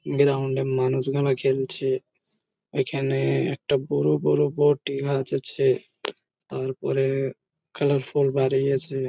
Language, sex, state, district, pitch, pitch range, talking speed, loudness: Bengali, male, West Bengal, Jhargram, 135 Hz, 130-140 Hz, 90 wpm, -24 LUFS